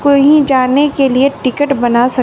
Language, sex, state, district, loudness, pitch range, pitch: Hindi, female, Bihar, West Champaran, -11 LUFS, 255-285 Hz, 275 Hz